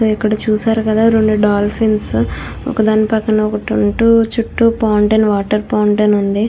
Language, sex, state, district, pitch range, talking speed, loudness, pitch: Telugu, female, Andhra Pradesh, Krishna, 210-225 Hz, 100 wpm, -14 LUFS, 215 Hz